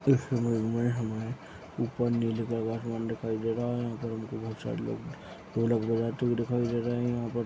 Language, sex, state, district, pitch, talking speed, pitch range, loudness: Hindi, male, Chhattisgarh, Kabirdham, 115 Hz, 235 wpm, 115-120 Hz, -31 LUFS